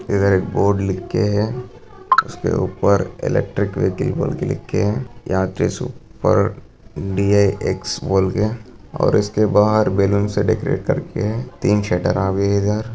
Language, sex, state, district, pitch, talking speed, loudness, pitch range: Hindi, male, Maharashtra, Sindhudurg, 105 Hz, 135 wpm, -19 LUFS, 100-110 Hz